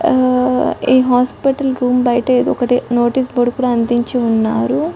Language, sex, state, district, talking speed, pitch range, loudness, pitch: Telugu, female, Telangana, Karimnagar, 145 wpm, 240-255 Hz, -15 LUFS, 250 Hz